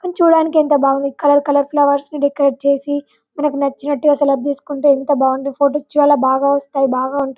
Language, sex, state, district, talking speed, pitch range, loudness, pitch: Telugu, female, Telangana, Karimnagar, 170 wpm, 275-290 Hz, -15 LUFS, 285 Hz